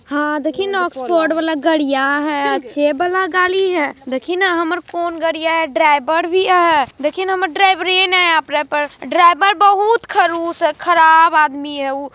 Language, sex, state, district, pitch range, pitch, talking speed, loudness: Magahi, female, Bihar, Jamui, 300-365 Hz, 330 Hz, 145 wpm, -15 LUFS